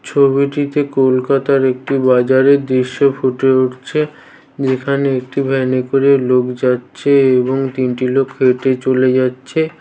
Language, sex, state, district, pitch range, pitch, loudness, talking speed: Bengali, male, West Bengal, North 24 Parganas, 130-140 Hz, 130 Hz, -14 LUFS, 120 wpm